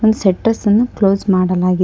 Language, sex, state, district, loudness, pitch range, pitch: Kannada, female, Karnataka, Koppal, -15 LUFS, 185-220 Hz, 195 Hz